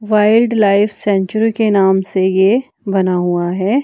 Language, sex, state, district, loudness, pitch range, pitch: Hindi, female, Himachal Pradesh, Shimla, -14 LUFS, 190-220 Hz, 200 Hz